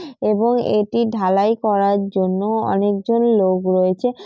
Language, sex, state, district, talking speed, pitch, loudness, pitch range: Bengali, female, West Bengal, Jalpaiguri, 125 wpm, 210 Hz, -18 LUFS, 195-230 Hz